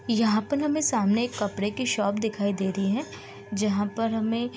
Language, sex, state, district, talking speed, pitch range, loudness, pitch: Hindi, female, Uttar Pradesh, Deoria, 225 wpm, 205-235 Hz, -26 LUFS, 220 Hz